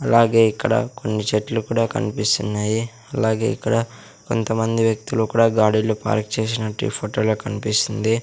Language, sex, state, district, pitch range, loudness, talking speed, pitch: Telugu, male, Andhra Pradesh, Sri Satya Sai, 105-115 Hz, -20 LUFS, 140 wpm, 110 Hz